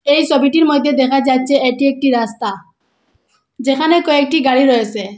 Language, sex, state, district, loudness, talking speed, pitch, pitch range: Bengali, female, Assam, Hailakandi, -14 LUFS, 140 wpm, 275 Hz, 260-290 Hz